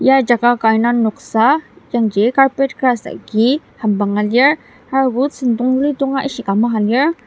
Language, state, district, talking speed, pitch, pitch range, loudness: Ao, Nagaland, Dimapur, 140 wpm, 250 Hz, 225-270 Hz, -15 LUFS